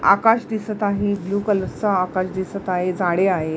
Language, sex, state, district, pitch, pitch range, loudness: Marathi, female, Maharashtra, Mumbai Suburban, 195 Hz, 185-205 Hz, -21 LUFS